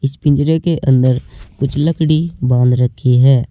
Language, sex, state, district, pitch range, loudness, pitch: Hindi, male, Uttar Pradesh, Saharanpur, 125-155 Hz, -14 LUFS, 135 Hz